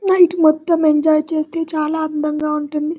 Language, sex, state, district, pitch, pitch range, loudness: Telugu, male, Telangana, Karimnagar, 310 Hz, 305-325 Hz, -17 LUFS